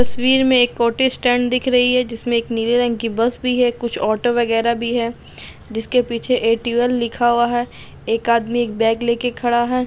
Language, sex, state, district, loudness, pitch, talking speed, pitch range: Hindi, female, Chhattisgarh, Sukma, -18 LUFS, 240 Hz, 225 wpm, 235-245 Hz